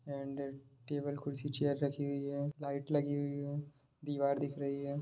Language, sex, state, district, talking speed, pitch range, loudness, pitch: Hindi, male, Bihar, Darbhanga, 180 wpm, 140-145 Hz, -38 LUFS, 140 Hz